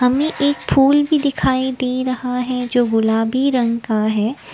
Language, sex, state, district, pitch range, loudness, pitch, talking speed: Hindi, female, Assam, Kamrup Metropolitan, 235-270 Hz, -17 LUFS, 250 Hz, 160 wpm